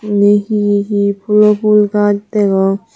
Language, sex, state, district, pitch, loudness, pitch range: Chakma, female, Tripura, Unakoti, 205 Hz, -12 LUFS, 200-210 Hz